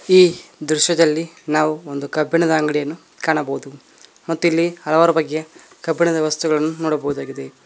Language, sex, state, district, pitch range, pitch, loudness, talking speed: Kannada, male, Karnataka, Koppal, 150-165 Hz, 155 Hz, -18 LUFS, 100 wpm